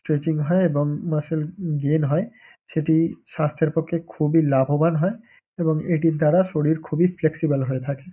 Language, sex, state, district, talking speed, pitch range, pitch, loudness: Bengali, male, West Bengal, Paschim Medinipur, 150 wpm, 150-170 Hz, 160 Hz, -22 LUFS